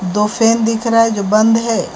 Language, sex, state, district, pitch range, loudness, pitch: Hindi, female, Maharashtra, Mumbai Suburban, 210-230 Hz, -13 LUFS, 225 Hz